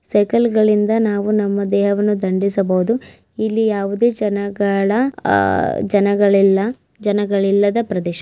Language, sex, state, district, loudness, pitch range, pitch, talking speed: Kannada, female, Karnataka, Belgaum, -17 LUFS, 195-215 Hz, 205 Hz, 90 wpm